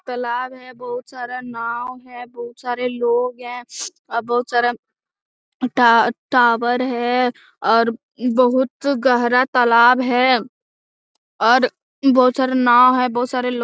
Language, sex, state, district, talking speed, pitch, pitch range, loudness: Hindi, female, Bihar, Jamui, 130 wpm, 245 Hz, 240-255 Hz, -17 LUFS